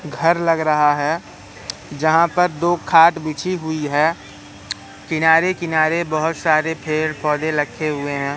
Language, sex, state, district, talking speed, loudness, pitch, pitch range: Hindi, male, Madhya Pradesh, Katni, 145 wpm, -18 LUFS, 155 Hz, 150-165 Hz